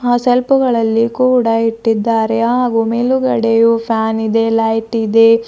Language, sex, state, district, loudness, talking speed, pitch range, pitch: Kannada, female, Karnataka, Bidar, -14 LUFS, 110 wpm, 225-245 Hz, 230 Hz